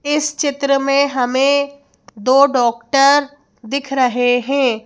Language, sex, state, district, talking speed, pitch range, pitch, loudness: Hindi, female, Madhya Pradesh, Bhopal, 110 wpm, 250-280 Hz, 275 Hz, -15 LUFS